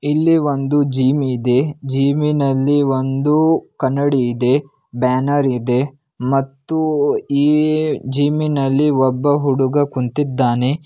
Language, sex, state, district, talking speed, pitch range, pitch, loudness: Kannada, male, Karnataka, Belgaum, 95 wpm, 130-145 Hz, 140 Hz, -17 LUFS